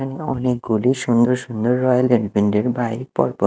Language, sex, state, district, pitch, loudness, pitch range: Bengali, male, Odisha, Malkangiri, 125 Hz, -19 LUFS, 115-130 Hz